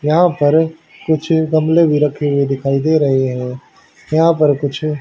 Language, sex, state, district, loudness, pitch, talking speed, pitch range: Hindi, male, Haryana, Charkhi Dadri, -15 LUFS, 150 Hz, 170 wpm, 140-160 Hz